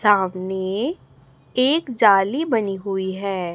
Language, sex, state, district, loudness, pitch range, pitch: Hindi, male, Chhattisgarh, Raipur, -21 LUFS, 190-245 Hz, 200 Hz